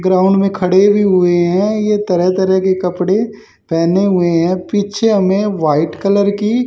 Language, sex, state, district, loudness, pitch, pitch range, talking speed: Hindi, male, Haryana, Jhajjar, -13 LUFS, 190 Hz, 180-205 Hz, 170 wpm